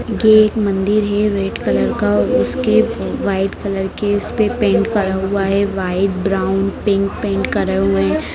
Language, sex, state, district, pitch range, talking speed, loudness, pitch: Hindi, female, Bihar, Darbhanga, 190-205 Hz, 170 wpm, -16 LUFS, 195 Hz